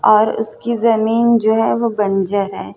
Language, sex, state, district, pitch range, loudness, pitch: Hindi, female, Uttar Pradesh, Hamirpur, 210-230 Hz, -16 LUFS, 220 Hz